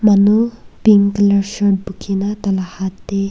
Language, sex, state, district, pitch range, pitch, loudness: Nagamese, female, Nagaland, Kohima, 195-205 Hz, 200 Hz, -16 LUFS